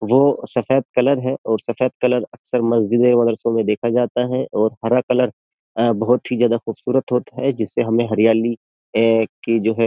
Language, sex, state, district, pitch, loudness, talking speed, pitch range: Hindi, male, Uttar Pradesh, Jyotiba Phule Nagar, 120 Hz, -18 LUFS, 180 wpm, 115-125 Hz